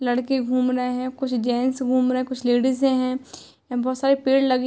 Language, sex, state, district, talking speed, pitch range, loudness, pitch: Hindi, female, Uttar Pradesh, Hamirpur, 220 wpm, 250-260 Hz, -22 LUFS, 255 Hz